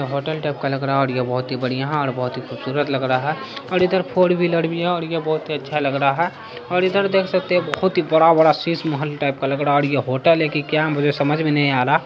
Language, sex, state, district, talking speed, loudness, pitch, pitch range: Hindi, male, Bihar, Saharsa, 310 wpm, -19 LUFS, 150 Hz, 140-165 Hz